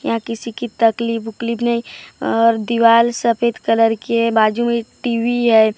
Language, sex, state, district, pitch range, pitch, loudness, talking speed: Hindi, female, Maharashtra, Gondia, 225-235 Hz, 230 Hz, -17 LUFS, 165 wpm